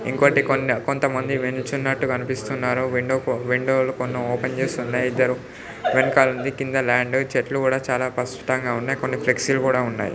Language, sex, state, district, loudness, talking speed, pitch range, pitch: Telugu, male, Telangana, Nalgonda, -22 LUFS, 150 wpm, 125-135 Hz, 130 Hz